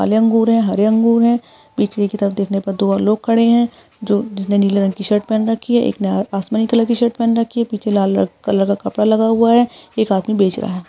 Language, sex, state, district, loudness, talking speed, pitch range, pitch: Hindi, female, Bihar, Darbhanga, -16 LUFS, 265 wpm, 200-230 Hz, 215 Hz